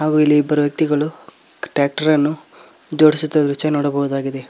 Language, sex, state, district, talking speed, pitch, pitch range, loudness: Kannada, male, Karnataka, Koppal, 120 wpm, 150 Hz, 145-155 Hz, -17 LUFS